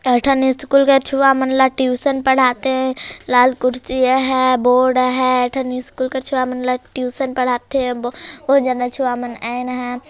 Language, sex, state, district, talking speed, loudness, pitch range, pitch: Chhattisgarhi, female, Chhattisgarh, Jashpur, 185 wpm, -17 LUFS, 250-265 Hz, 255 Hz